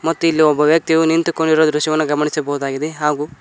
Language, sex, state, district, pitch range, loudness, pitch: Kannada, male, Karnataka, Koppal, 150-160 Hz, -16 LUFS, 155 Hz